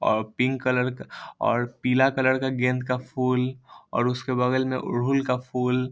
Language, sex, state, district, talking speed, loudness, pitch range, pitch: Hindi, male, Bihar, Lakhisarai, 195 wpm, -25 LUFS, 125-130 Hz, 125 Hz